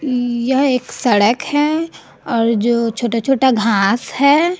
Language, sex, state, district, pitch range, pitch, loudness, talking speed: Hindi, female, Chhattisgarh, Raipur, 230-280 Hz, 250 Hz, -16 LUFS, 130 wpm